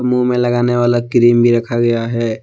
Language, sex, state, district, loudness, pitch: Hindi, male, Jharkhand, Deoghar, -14 LUFS, 120 Hz